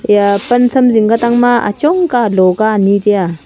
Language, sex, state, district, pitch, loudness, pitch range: Wancho, female, Arunachal Pradesh, Longding, 220 Hz, -11 LUFS, 200-245 Hz